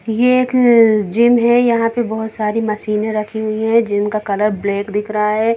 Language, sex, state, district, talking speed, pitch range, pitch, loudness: Hindi, female, Bihar, Gopalganj, 195 wpm, 210-230 Hz, 220 Hz, -15 LUFS